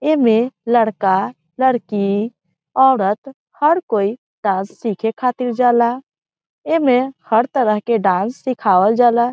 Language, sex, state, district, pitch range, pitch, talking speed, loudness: Bhojpuri, female, Bihar, Saran, 205-255 Hz, 235 Hz, 110 wpm, -17 LUFS